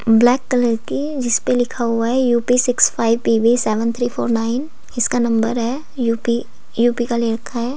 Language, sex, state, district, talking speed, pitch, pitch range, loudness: Hindi, female, Delhi, New Delhi, 195 wpm, 235 Hz, 230-245 Hz, -18 LUFS